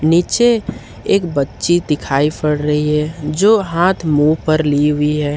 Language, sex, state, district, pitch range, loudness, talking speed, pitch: Hindi, male, Jharkhand, Ranchi, 150-175 Hz, -15 LUFS, 155 wpm, 155 Hz